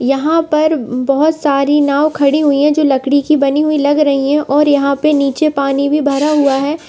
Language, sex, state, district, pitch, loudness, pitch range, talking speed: Hindi, female, Bihar, Saharsa, 290 Hz, -13 LUFS, 275-300 Hz, 215 wpm